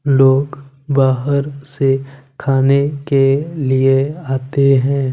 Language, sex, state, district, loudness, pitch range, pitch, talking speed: Hindi, male, Punjab, Kapurthala, -15 LUFS, 135-140 Hz, 135 Hz, 95 wpm